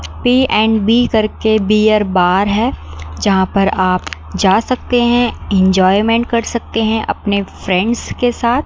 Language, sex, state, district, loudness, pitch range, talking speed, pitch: Hindi, female, Chandigarh, Chandigarh, -14 LUFS, 190-235 Hz, 145 wpm, 215 Hz